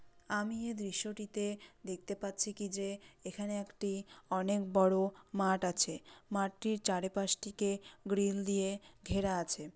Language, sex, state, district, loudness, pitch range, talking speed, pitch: Bengali, female, West Bengal, Dakshin Dinajpur, -36 LUFS, 195-205 Hz, 135 wpm, 200 Hz